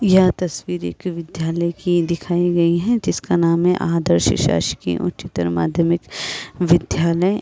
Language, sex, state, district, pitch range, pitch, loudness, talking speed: Hindi, female, Chhattisgarh, Rajnandgaon, 170-180 Hz, 170 Hz, -19 LUFS, 135 wpm